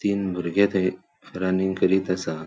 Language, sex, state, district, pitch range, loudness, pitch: Konkani, male, Goa, North and South Goa, 90-95 Hz, -23 LUFS, 95 Hz